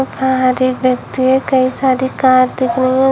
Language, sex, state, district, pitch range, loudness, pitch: Hindi, female, Uttar Pradesh, Shamli, 255-265 Hz, -14 LUFS, 260 Hz